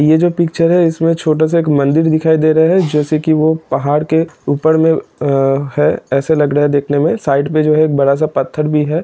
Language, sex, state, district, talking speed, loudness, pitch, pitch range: Hindi, male, Jharkhand, Jamtara, 245 wpm, -13 LUFS, 155 Hz, 145-160 Hz